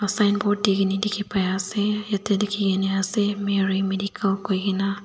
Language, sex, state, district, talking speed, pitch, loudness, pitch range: Nagamese, female, Nagaland, Dimapur, 165 wpm, 200 Hz, -23 LUFS, 195-205 Hz